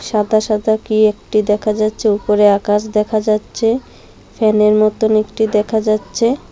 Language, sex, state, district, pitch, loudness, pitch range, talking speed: Bengali, female, Assam, Hailakandi, 215 Hz, -15 LUFS, 210-220 Hz, 140 wpm